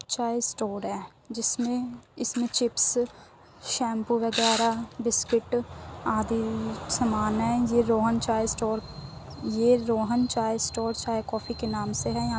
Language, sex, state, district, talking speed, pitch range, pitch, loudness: Hindi, female, Uttar Pradesh, Muzaffarnagar, 115 wpm, 220-240 Hz, 230 Hz, -27 LUFS